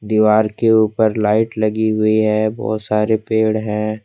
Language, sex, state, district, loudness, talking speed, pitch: Hindi, male, Jharkhand, Deoghar, -16 LUFS, 165 wpm, 110 Hz